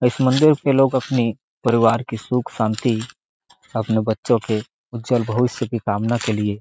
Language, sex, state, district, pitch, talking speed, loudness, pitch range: Hindi, male, Chhattisgarh, Sarguja, 120 Hz, 165 wpm, -20 LUFS, 110-125 Hz